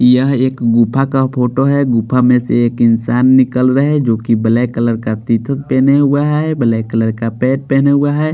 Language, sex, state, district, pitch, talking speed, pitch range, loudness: Hindi, male, Bihar, Patna, 125 Hz, 215 wpm, 115-135 Hz, -13 LUFS